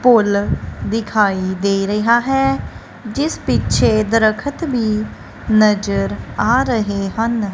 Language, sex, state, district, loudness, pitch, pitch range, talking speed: Punjabi, female, Punjab, Kapurthala, -17 LUFS, 215 Hz, 200-240 Hz, 105 wpm